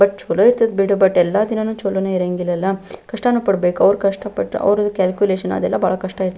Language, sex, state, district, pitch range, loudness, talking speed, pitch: Kannada, female, Karnataka, Belgaum, 185-205 Hz, -17 LUFS, 195 wpm, 195 Hz